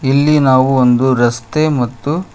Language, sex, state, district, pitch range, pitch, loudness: Kannada, male, Karnataka, Koppal, 125-150 Hz, 130 Hz, -13 LUFS